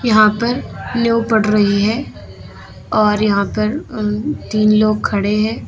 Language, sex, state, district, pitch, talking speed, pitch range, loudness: Hindi, female, Uttar Pradesh, Lucknow, 215 Hz, 135 wpm, 200-220 Hz, -16 LUFS